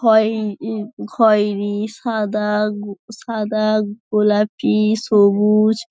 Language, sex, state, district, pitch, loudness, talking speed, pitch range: Bengali, female, West Bengal, Dakshin Dinajpur, 215 Hz, -18 LUFS, 80 wpm, 210-220 Hz